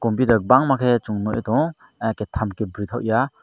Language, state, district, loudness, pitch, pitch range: Kokborok, Tripura, Dhalai, -21 LUFS, 115 Hz, 110-125 Hz